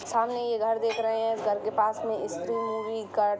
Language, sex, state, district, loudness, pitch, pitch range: Hindi, female, Chhattisgarh, Bastar, -28 LUFS, 220 Hz, 215-225 Hz